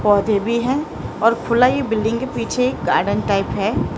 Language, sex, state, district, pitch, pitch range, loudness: Hindi, male, Maharashtra, Mumbai Suburban, 235 Hz, 220-250 Hz, -19 LUFS